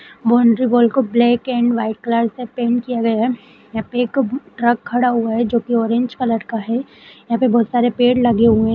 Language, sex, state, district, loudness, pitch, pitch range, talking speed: Hindi, female, Bihar, Saharsa, -17 LUFS, 240 Hz, 230-245 Hz, 225 wpm